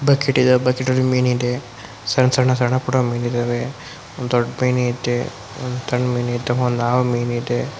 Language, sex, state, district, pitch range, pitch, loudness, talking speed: Kannada, male, Karnataka, Chamarajanagar, 120-130 Hz, 125 Hz, -19 LUFS, 160 wpm